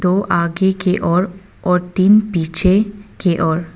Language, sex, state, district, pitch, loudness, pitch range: Hindi, female, Arunachal Pradesh, Papum Pare, 185 Hz, -16 LUFS, 170-195 Hz